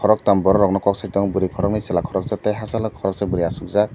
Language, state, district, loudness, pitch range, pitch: Kokborok, Tripura, Dhalai, -20 LUFS, 95-105 Hz, 100 Hz